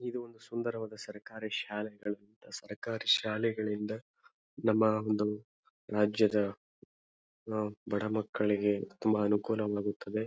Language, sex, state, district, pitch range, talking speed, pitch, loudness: Kannada, male, Karnataka, Bijapur, 105-110 Hz, 90 wpm, 105 Hz, -33 LUFS